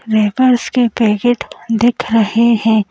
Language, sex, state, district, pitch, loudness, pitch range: Hindi, female, Madhya Pradesh, Bhopal, 230 Hz, -14 LUFS, 220-245 Hz